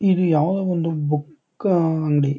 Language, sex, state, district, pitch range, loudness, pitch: Kannada, male, Karnataka, Chamarajanagar, 150-180 Hz, -21 LUFS, 160 Hz